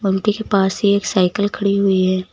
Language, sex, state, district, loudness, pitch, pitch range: Hindi, female, Uttar Pradesh, Lucknow, -17 LUFS, 200 Hz, 190-205 Hz